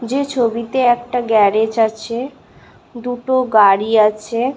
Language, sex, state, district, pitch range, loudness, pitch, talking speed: Bengali, female, West Bengal, Malda, 220-245 Hz, -16 LUFS, 235 Hz, 105 wpm